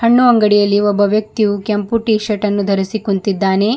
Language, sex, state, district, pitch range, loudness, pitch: Kannada, female, Karnataka, Bidar, 200-220 Hz, -14 LUFS, 210 Hz